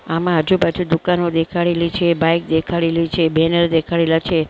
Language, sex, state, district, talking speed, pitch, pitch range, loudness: Gujarati, female, Maharashtra, Mumbai Suburban, 145 wpm, 165 Hz, 165-175 Hz, -17 LUFS